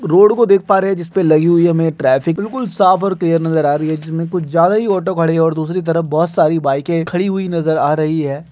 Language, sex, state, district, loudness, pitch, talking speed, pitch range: Hindi, male, Bihar, Darbhanga, -15 LUFS, 165 Hz, 260 wpm, 160-190 Hz